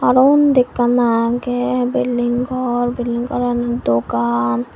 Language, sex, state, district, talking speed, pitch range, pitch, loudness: Chakma, female, Tripura, Dhalai, 115 wpm, 235-250 Hz, 245 Hz, -17 LUFS